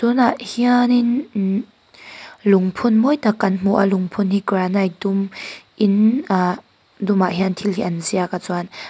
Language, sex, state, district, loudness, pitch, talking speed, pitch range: Mizo, female, Mizoram, Aizawl, -19 LUFS, 200 Hz, 160 wpm, 190-235 Hz